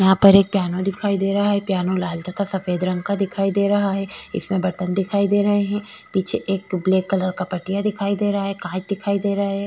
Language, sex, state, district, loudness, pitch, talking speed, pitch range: Hindi, female, Goa, North and South Goa, -21 LUFS, 195 Hz, 230 wpm, 185-200 Hz